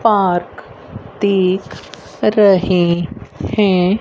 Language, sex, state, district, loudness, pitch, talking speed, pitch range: Hindi, female, Haryana, Rohtak, -15 LUFS, 190 Hz, 60 wpm, 180-205 Hz